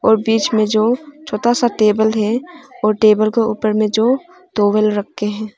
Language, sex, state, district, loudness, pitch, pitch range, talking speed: Hindi, female, Arunachal Pradesh, Papum Pare, -16 LUFS, 220 Hz, 215-240 Hz, 180 wpm